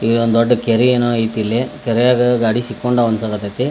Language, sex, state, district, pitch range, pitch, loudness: Kannada, male, Karnataka, Bijapur, 115-125 Hz, 115 Hz, -16 LUFS